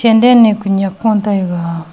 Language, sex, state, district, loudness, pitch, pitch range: Wancho, female, Arunachal Pradesh, Longding, -12 LUFS, 205 Hz, 185-225 Hz